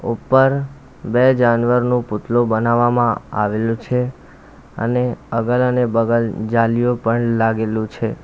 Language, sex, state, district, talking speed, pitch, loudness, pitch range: Gujarati, male, Gujarat, Valsad, 110 wpm, 115 Hz, -18 LUFS, 115-125 Hz